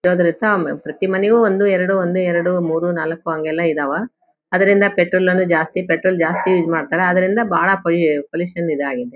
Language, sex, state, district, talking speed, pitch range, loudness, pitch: Kannada, female, Karnataka, Bellary, 150 wpm, 165-190 Hz, -17 LUFS, 180 Hz